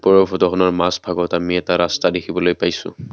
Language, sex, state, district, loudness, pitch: Assamese, male, Assam, Kamrup Metropolitan, -18 LUFS, 90 Hz